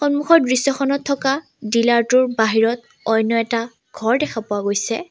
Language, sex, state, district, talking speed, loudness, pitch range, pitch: Assamese, female, Assam, Sonitpur, 130 wpm, -18 LUFS, 225-275 Hz, 235 Hz